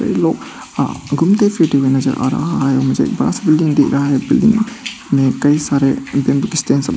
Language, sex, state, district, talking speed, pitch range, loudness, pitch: Hindi, male, Arunachal Pradesh, Papum Pare, 180 wpm, 135-190 Hz, -15 LUFS, 145 Hz